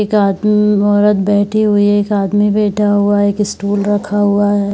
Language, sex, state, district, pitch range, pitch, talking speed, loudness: Hindi, female, Bihar, Saharsa, 205-210 Hz, 205 Hz, 240 wpm, -13 LUFS